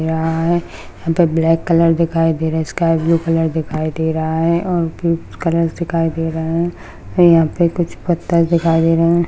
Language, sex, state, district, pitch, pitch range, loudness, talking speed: Hindi, male, Maharashtra, Dhule, 165 Hz, 160-170 Hz, -16 LUFS, 225 wpm